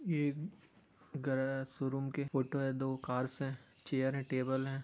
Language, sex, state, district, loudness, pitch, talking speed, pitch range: Hindi, male, Bihar, Bhagalpur, -37 LUFS, 135 Hz, 160 wpm, 130-140 Hz